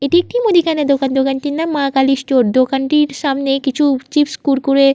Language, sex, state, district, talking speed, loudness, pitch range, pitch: Bengali, female, West Bengal, Jhargram, 195 wpm, -15 LUFS, 270-295 Hz, 275 Hz